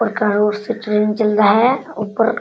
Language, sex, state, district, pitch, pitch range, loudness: Hindi, male, Bihar, Sitamarhi, 215 Hz, 210-230 Hz, -16 LUFS